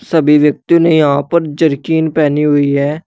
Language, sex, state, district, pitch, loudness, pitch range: Hindi, male, Uttar Pradesh, Shamli, 150 Hz, -12 LUFS, 145-160 Hz